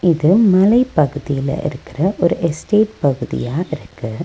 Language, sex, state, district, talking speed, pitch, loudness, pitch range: Tamil, female, Tamil Nadu, Nilgiris, 100 wpm, 160 Hz, -17 LUFS, 140-190 Hz